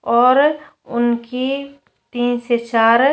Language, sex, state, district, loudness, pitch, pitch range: Hindi, female, Chhattisgarh, Bastar, -17 LUFS, 245 Hz, 235-275 Hz